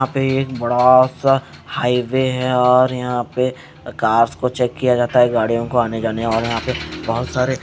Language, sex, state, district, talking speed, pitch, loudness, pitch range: Hindi, male, Punjab, Fazilka, 195 wpm, 125 Hz, -17 LUFS, 120-130 Hz